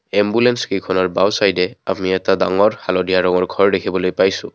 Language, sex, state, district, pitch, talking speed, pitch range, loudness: Assamese, male, Assam, Kamrup Metropolitan, 95 Hz, 160 wpm, 90-95 Hz, -17 LUFS